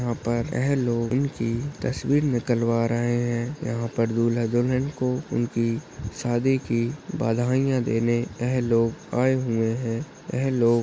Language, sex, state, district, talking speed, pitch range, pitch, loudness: Hindi, male, Bihar, Madhepura, 140 wpm, 115-130 Hz, 120 Hz, -25 LUFS